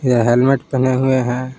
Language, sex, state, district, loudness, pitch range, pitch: Hindi, male, Jharkhand, Palamu, -16 LUFS, 125-130 Hz, 130 Hz